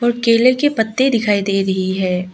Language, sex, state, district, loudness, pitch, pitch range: Hindi, female, Arunachal Pradesh, Lower Dibang Valley, -16 LUFS, 225 Hz, 190-240 Hz